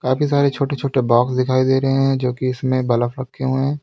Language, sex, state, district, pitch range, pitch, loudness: Hindi, male, Uttar Pradesh, Lalitpur, 130-135 Hz, 130 Hz, -18 LUFS